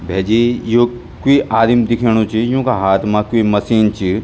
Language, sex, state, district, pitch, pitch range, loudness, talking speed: Garhwali, male, Uttarakhand, Tehri Garhwal, 115 Hz, 105-120 Hz, -14 LUFS, 170 wpm